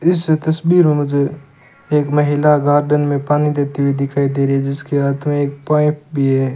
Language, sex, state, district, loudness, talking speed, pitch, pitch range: Hindi, male, Rajasthan, Bikaner, -16 LUFS, 200 wpm, 145 Hz, 140-150 Hz